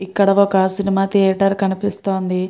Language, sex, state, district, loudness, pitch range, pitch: Telugu, female, Andhra Pradesh, Guntur, -17 LUFS, 190-200 Hz, 195 Hz